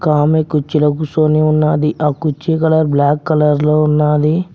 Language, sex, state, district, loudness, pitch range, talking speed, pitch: Telugu, male, Telangana, Mahabubabad, -14 LUFS, 150-155 Hz, 145 wpm, 150 Hz